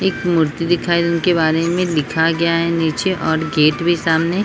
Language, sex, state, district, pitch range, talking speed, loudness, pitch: Bhojpuri, female, Bihar, Saran, 160-175 Hz, 200 wpm, -17 LUFS, 170 Hz